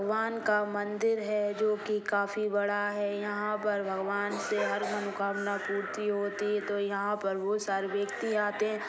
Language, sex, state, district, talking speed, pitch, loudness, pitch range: Hindi, female, Bihar, Saran, 160 wpm, 205 Hz, -31 LUFS, 200-210 Hz